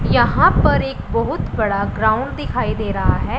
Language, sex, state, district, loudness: Hindi, female, Punjab, Pathankot, -18 LUFS